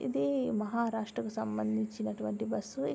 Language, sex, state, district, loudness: Telugu, female, Andhra Pradesh, Srikakulam, -34 LUFS